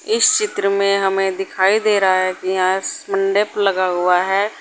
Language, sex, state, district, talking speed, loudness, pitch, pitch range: Hindi, female, Uttar Pradesh, Saharanpur, 195 wpm, -17 LUFS, 195 Hz, 185-205 Hz